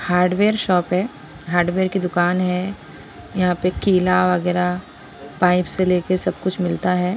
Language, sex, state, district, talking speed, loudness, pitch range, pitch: Hindi, female, Punjab, Pathankot, 150 wpm, -19 LUFS, 180-185 Hz, 180 Hz